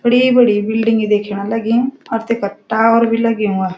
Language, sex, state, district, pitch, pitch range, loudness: Garhwali, female, Uttarakhand, Uttarkashi, 225 Hz, 210-230 Hz, -15 LUFS